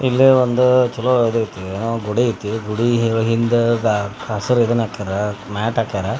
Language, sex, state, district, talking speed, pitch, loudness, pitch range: Kannada, male, Karnataka, Bijapur, 135 wpm, 115 Hz, -18 LUFS, 105-120 Hz